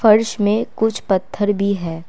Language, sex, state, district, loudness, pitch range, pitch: Hindi, female, Assam, Kamrup Metropolitan, -18 LUFS, 190-215 Hz, 205 Hz